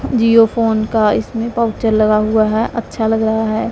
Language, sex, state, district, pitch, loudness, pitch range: Hindi, female, Punjab, Pathankot, 225 Hz, -15 LUFS, 220-230 Hz